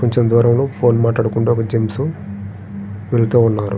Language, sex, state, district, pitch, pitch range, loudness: Telugu, male, Andhra Pradesh, Srikakulam, 115 Hz, 100-120 Hz, -16 LUFS